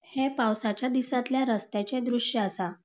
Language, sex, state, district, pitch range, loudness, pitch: Konkani, female, Goa, North and South Goa, 210-255 Hz, -28 LUFS, 240 Hz